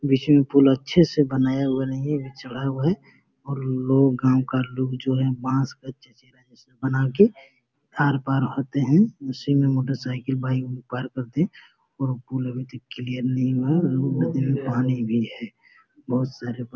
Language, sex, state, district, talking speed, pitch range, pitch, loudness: Hindi, male, Jharkhand, Jamtara, 170 wpm, 130-140 Hz, 130 Hz, -23 LUFS